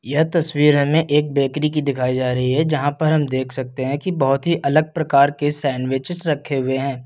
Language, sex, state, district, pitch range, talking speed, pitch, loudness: Hindi, male, Uttar Pradesh, Lucknow, 135-155 Hz, 220 wpm, 145 Hz, -19 LUFS